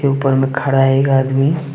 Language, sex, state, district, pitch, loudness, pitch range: Hindi, male, Jharkhand, Deoghar, 135 Hz, -15 LUFS, 135-140 Hz